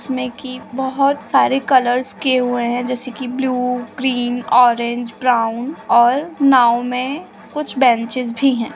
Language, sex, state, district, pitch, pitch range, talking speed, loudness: Hindi, female, Uttar Pradesh, Budaun, 250 Hz, 240-265 Hz, 145 wpm, -17 LUFS